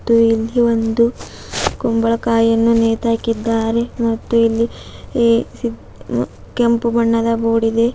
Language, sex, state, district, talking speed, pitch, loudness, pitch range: Kannada, female, Karnataka, Bidar, 105 wpm, 230 Hz, -17 LUFS, 225-235 Hz